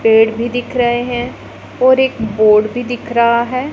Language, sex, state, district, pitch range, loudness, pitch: Hindi, female, Punjab, Pathankot, 225-245 Hz, -14 LUFS, 240 Hz